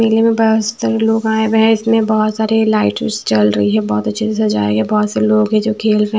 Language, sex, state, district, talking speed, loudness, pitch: Hindi, female, Maharashtra, Washim, 240 wpm, -14 LUFS, 215 Hz